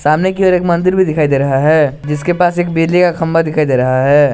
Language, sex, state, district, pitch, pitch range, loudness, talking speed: Hindi, male, Jharkhand, Garhwa, 165 Hz, 145-175 Hz, -12 LUFS, 275 wpm